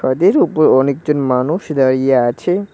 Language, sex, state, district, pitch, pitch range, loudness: Bengali, male, West Bengal, Cooch Behar, 135 Hz, 130-155 Hz, -14 LUFS